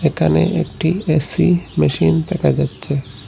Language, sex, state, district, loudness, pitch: Bengali, male, Assam, Hailakandi, -17 LUFS, 135 Hz